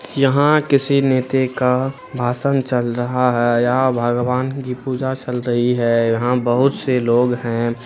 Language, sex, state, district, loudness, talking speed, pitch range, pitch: Hindi, male, Bihar, Araria, -18 LUFS, 160 wpm, 120-130 Hz, 125 Hz